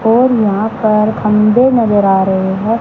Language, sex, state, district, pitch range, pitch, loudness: Hindi, male, Haryana, Charkhi Dadri, 205-230 Hz, 215 Hz, -12 LUFS